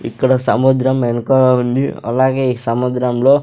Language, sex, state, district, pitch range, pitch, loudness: Telugu, male, Andhra Pradesh, Sri Satya Sai, 125-130 Hz, 130 Hz, -15 LUFS